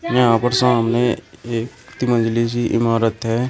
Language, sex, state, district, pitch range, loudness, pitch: Hindi, male, Uttar Pradesh, Shamli, 115-125 Hz, -18 LUFS, 120 Hz